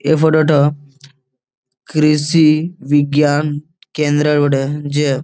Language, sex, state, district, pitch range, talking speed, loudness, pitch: Bengali, male, West Bengal, Malda, 140-150 Hz, 90 wpm, -14 LUFS, 145 Hz